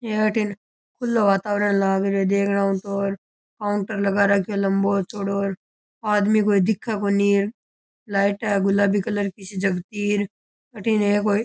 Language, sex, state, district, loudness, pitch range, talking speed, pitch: Rajasthani, male, Rajasthan, Churu, -22 LUFS, 195-210 Hz, 150 wpm, 200 Hz